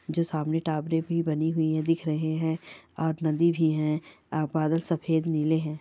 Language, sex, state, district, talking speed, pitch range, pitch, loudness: Hindi, female, Bihar, Bhagalpur, 195 wpm, 155-165 Hz, 160 Hz, -27 LUFS